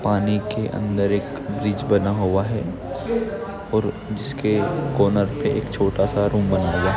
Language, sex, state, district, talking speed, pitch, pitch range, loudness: Hindi, male, Maharashtra, Nagpur, 155 wpm, 105 Hz, 100-115 Hz, -22 LUFS